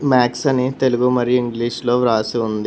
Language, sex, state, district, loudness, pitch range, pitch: Telugu, male, Telangana, Hyderabad, -18 LUFS, 120-125 Hz, 125 Hz